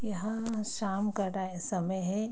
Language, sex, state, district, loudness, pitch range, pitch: Hindi, female, Bihar, Saharsa, -33 LUFS, 190-220 Hz, 200 Hz